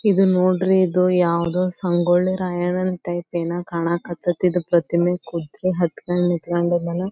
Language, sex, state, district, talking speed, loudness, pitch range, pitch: Kannada, female, Karnataka, Belgaum, 120 wpm, -20 LUFS, 170-185 Hz, 175 Hz